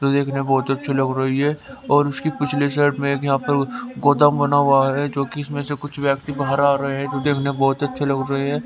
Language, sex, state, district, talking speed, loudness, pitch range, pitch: Hindi, male, Haryana, Rohtak, 255 wpm, -20 LUFS, 135-145 Hz, 140 Hz